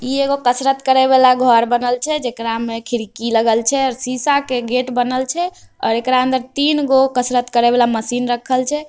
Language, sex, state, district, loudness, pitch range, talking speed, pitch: Angika, female, Bihar, Begusarai, -16 LUFS, 240-265 Hz, 180 wpm, 255 Hz